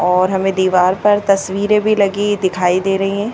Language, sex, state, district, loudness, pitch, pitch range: Hindi, male, Madhya Pradesh, Bhopal, -15 LUFS, 195 Hz, 185-205 Hz